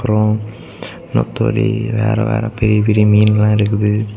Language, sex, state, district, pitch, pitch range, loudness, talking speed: Tamil, male, Tamil Nadu, Kanyakumari, 105 Hz, 105-110 Hz, -15 LUFS, 115 wpm